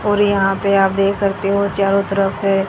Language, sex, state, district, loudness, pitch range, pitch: Hindi, female, Haryana, Rohtak, -16 LUFS, 195-200 Hz, 195 Hz